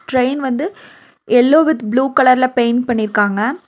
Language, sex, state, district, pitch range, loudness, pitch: Tamil, female, Tamil Nadu, Nilgiris, 235-275 Hz, -15 LUFS, 255 Hz